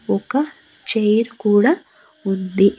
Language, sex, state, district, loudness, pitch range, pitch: Telugu, female, Andhra Pradesh, Annamaya, -18 LUFS, 195-280 Hz, 220 Hz